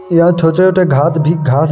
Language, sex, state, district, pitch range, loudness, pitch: Hindi, male, Uttar Pradesh, Muzaffarnagar, 155-175 Hz, -11 LUFS, 165 Hz